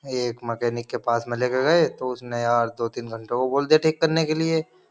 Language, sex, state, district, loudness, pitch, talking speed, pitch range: Hindi, male, Uttar Pradesh, Jyotiba Phule Nagar, -23 LUFS, 125 Hz, 230 wpm, 120-140 Hz